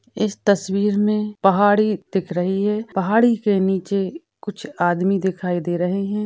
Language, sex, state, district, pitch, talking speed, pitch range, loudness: Hindi, female, Maharashtra, Dhule, 200 Hz, 155 wpm, 190-210 Hz, -20 LUFS